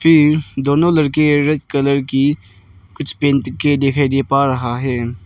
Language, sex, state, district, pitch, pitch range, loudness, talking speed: Hindi, male, Arunachal Pradesh, Lower Dibang Valley, 140 Hz, 130-150 Hz, -15 LUFS, 150 wpm